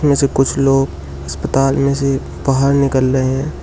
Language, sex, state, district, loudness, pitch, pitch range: Hindi, male, Uttar Pradesh, Shamli, -15 LUFS, 135 Hz, 130-140 Hz